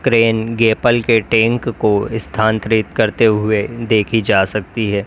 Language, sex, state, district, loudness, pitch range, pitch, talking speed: Hindi, male, Uttar Pradesh, Lalitpur, -15 LUFS, 105-115 Hz, 110 Hz, 140 wpm